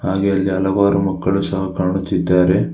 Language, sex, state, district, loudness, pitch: Kannada, male, Karnataka, Bangalore, -17 LUFS, 95 Hz